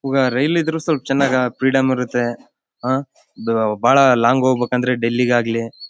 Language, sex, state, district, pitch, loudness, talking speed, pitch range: Kannada, male, Karnataka, Bellary, 125 Hz, -17 LUFS, 130 wpm, 120-135 Hz